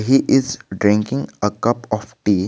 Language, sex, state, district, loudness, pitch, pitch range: English, male, Jharkhand, Garhwa, -19 LUFS, 110 Hz, 105-130 Hz